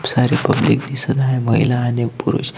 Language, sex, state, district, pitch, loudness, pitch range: Marathi, male, Maharashtra, Solapur, 125 Hz, -17 LUFS, 120-135 Hz